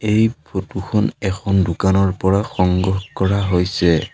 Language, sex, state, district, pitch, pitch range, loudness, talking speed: Assamese, male, Assam, Sonitpur, 95 Hz, 95-100 Hz, -18 LUFS, 130 wpm